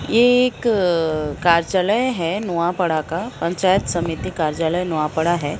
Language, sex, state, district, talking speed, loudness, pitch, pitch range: Hindi, female, Odisha, Sambalpur, 95 wpm, -19 LUFS, 170 Hz, 160-195 Hz